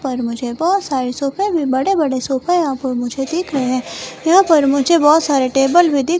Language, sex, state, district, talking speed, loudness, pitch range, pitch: Hindi, female, Himachal Pradesh, Shimla, 195 wpm, -16 LUFS, 260-335 Hz, 275 Hz